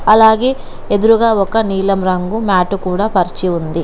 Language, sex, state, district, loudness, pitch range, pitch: Telugu, female, Telangana, Komaram Bheem, -13 LUFS, 185-220 Hz, 195 Hz